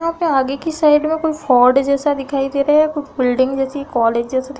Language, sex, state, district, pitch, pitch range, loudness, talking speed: Hindi, female, Uttar Pradesh, Hamirpur, 280 Hz, 260-300 Hz, -16 LUFS, 275 wpm